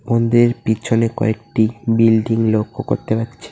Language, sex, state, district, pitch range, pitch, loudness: Bengali, male, West Bengal, Cooch Behar, 110-115 Hz, 115 Hz, -17 LUFS